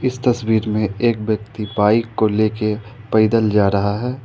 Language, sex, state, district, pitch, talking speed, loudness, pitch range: Hindi, male, Jharkhand, Ranchi, 110 Hz, 170 wpm, -18 LUFS, 105-115 Hz